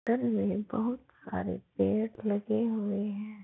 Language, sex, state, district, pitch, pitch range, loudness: Hindi, female, Uttar Pradesh, Jalaun, 215 Hz, 205-230 Hz, -32 LUFS